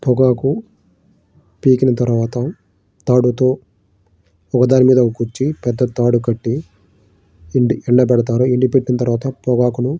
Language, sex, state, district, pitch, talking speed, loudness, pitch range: Telugu, male, Andhra Pradesh, Srikakulam, 125 Hz, 115 wpm, -16 LUFS, 115-130 Hz